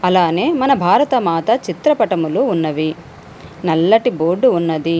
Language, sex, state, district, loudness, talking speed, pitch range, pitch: Telugu, female, Telangana, Hyderabad, -16 LUFS, 95 wpm, 165-240 Hz, 175 Hz